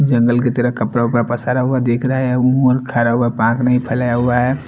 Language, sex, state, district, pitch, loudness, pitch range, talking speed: Hindi, male, Chandigarh, Chandigarh, 125 Hz, -16 LUFS, 120-125 Hz, 215 wpm